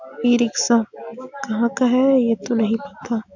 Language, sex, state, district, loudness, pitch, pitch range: Hindi, female, Chhattisgarh, Bastar, -19 LUFS, 235 Hz, 225-255 Hz